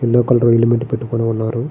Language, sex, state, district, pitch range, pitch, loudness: Telugu, male, Andhra Pradesh, Srikakulam, 115-120 Hz, 115 Hz, -16 LUFS